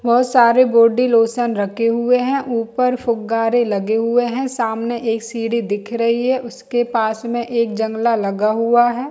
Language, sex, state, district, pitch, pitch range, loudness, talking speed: Hindi, female, Chhattisgarh, Bilaspur, 235 Hz, 225-240 Hz, -17 LUFS, 170 wpm